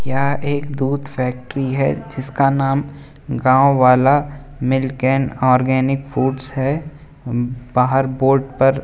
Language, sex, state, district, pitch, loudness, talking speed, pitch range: Hindi, male, Uttar Pradesh, Jalaun, 135 Hz, -18 LUFS, 120 wpm, 130-140 Hz